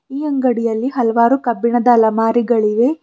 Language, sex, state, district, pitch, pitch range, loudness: Kannada, female, Karnataka, Bidar, 240 Hz, 230-255 Hz, -15 LUFS